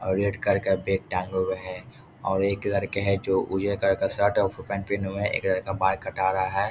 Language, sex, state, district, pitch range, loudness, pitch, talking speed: Hindi, male, Bihar, Jahanabad, 95-100 Hz, -26 LUFS, 95 Hz, 260 wpm